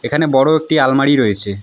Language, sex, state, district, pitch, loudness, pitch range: Bengali, female, West Bengal, Alipurduar, 135 Hz, -13 LUFS, 120-155 Hz